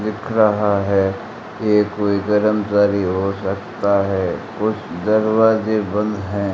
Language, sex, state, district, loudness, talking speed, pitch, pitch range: Hindi, male, Rajasthan, Bikaner, -18 LUFS, 120 wpm, 105 Hz, 100-110 Hz